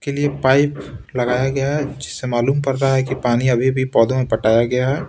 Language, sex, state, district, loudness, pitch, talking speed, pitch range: Hindi, male, Bihar, Patna, -18 LUFS, 130 Hz, 235 wpm, 125-140 Hz